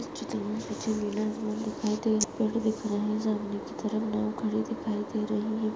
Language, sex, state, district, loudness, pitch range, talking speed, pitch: Hindi, female, Goa, North and South Goa, -30 LUFS, 215-220 Hz, 165 wpm, 215 Hz